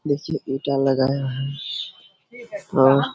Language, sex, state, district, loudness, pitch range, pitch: Hindi, male, Jharkhand, Sahebganj, -22 LUFS, 135-145 Hz, 140 Hz